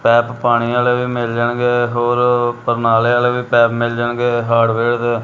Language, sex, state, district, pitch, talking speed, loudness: Punjabi, male, Punjab, Kapurthala, 120 Hz, 170 wpm, -15 LUFS